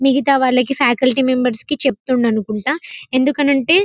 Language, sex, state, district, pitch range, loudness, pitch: Telugu, female, Telangana, Karimnagar, 250-280 Hz, -16 LUFS, 265 Hz